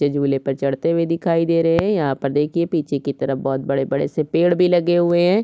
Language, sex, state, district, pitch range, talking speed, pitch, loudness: Hindi, female, Chhattisgarh, Kabirdham, 140-175 Hz, 240 wpm, 165 Hz, -19 LUFS